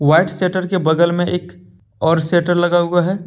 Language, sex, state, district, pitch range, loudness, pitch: Hindi, male, Jharkhand, Deoghar, 160-180 Hz, -16 LUFS, 175 Hz